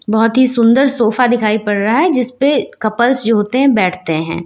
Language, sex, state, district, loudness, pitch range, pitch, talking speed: Hindi, female, Uttar Pradesh, Lucknow, -13 LUFS, 215-255 Hz, 230 Hz, 200 wpm